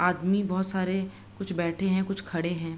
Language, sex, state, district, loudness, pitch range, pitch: Hindi, female, Bihar, Araria, -29 LUFS, 175-190 Hz, 185 Hz